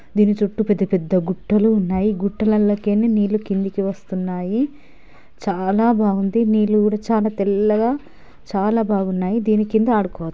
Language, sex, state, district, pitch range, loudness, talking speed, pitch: Telugu, female, Andhra Pradesh, Chittoor, 195-220 Hz, -19 LUFS, 130 wpm, 210 Hz